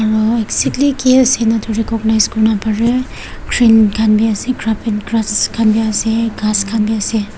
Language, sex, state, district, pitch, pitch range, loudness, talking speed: Nagamese, female, Nagaland, Kohima, 220 Hz, 215-230 Hz, -14 LUFS, 155 wpm